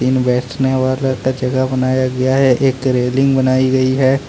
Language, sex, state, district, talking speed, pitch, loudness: Hindi, male, Jharkhand, Deoghar, 180 wpm, 130 Hz, -15 LUFS